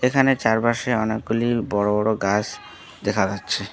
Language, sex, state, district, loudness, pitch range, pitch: Bengali, male, West Bengal, Alipurduar, -21 LUFS, 105-120 Hz, 110 Hz